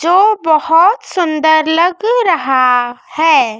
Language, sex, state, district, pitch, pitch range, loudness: Hindi, female, Madhya Pradesh, Dhar, 325 Hz, 305-380 Hz, -12 LUFS